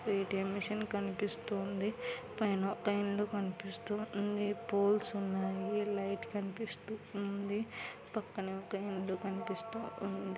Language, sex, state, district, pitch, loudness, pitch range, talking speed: Telugu, female, Andhra Pradesh, Anantapur, 205 Hz, -38 LUFS, 195-215 Hz, 90 wpm